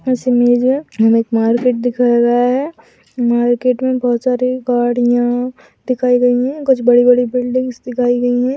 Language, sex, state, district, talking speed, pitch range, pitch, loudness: Hindi, female, Bihar, Jahanabad, 170 wpm, 245-255 Hz, 245 Hz, -14 LUFS